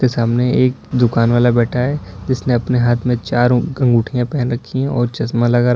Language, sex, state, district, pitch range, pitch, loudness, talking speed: Hindi, male, Uttar Pradesh, Lalitpur, 120-125 Hz, 120 Hz, -16 LUFS, 185 wpm